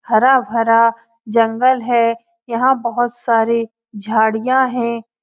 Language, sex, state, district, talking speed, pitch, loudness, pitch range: Hindi, female, Bihar, Lakhisarai, 90 wpm, 235 Hz, -16 LUFS, 230-250 Hz